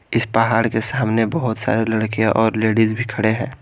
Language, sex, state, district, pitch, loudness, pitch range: Hindi, male, Jharkhand, Garhwa, 110 Hz, -18 LUFS, 110-115 Hz